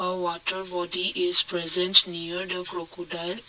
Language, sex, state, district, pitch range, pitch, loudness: English, male, Assam, Kamrup Metropolitan, 175-185 Hz, 180 Hz, -21 LUFS